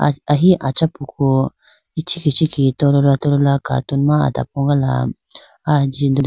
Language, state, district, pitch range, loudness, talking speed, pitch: Idu Mishmi, Arunachal Pradesh, Lower Dibang Valley, 135-150 Hz, -17 LUFS, 105 wpm, 140 Hz